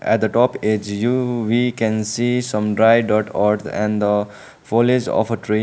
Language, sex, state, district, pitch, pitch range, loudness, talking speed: English, male, Sikkim, Gangtok, 110 Hz, 105-120 Hz, -18 LUFS, 190 wpm